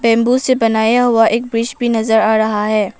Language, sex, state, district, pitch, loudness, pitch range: Hindi, female, Arunachal Pradesh, Lower Dibang Valley, 225 Hz, -14 LUFS, 220-240 Hz